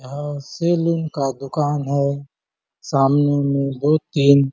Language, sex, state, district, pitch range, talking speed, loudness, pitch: Hindi, male, Chhattisgarh, Bastar, 140-145 Hz, 135 wpm, -19 LUFS, 140 Hz